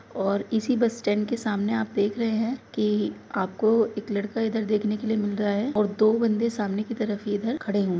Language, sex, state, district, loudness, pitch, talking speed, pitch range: Hindi, female, Uttar Pradesh, Muzaffarnagar, -25 LUFS, 215 Hz, 225 wpm, 205-225 Hz